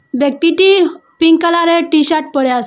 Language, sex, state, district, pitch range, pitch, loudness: Bengali, female, Assam, Hailakandi, 290-340 Hz, 325 Hz, -12 LUFS